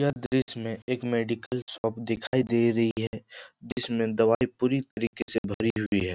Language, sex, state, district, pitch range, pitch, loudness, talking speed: Hindi, male, Bihar, Jahanabad, 115-125 Hz, 115 Hz, -28 LUFS, 175 wpm